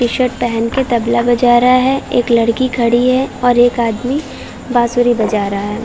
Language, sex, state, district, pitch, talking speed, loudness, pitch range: Hindi, female, Uttar Pradesh, Varanasi, 240 Hz, 185 wpm, -13 LUFS, 235-255 Hz